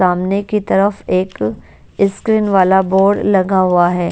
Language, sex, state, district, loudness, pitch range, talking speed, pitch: Hindi, female, Bihar, West Champaran, -14 LUFS, 180-200 Hz, 145 wpm, 190 Hz